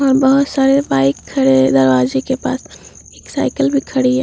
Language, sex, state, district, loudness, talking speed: Hindi, female, Bihar, Vaishali, -14 LUFS, 200 wpm